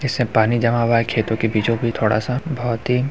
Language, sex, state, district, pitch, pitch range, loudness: Hindi, male, Bihar, Muzaffarpur, 115 Hz, 110-125 Hz, -19 LUFS